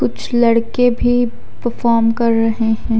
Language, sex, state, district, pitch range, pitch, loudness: Hindi, female, Odisha, Khordha, 225-240 Hz, 230 Hz, -16 LUFS